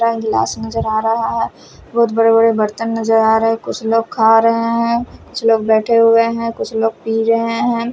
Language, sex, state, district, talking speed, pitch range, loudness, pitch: Hindi, female, Bihar, Kaimur, 220 wpm, 220-230 Hz, -15 LUFS, 225 Hz